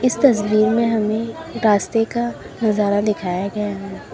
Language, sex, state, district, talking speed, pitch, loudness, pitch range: Hindi, female, Uttar Pradesh, Lalitpur, 145 wpm, 215 Hz, -19 LUFS, 205-230 Hz